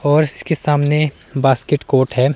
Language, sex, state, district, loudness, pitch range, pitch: Hindi, male, Himachal Pradesh, Shimla, -17 LUFS, 135-150 Hz, 145 Hz